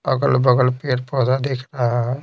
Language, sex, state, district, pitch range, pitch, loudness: Hindi, male, Bihar, Patna, 125-135 Hz, 130 Hz, -19 LUFS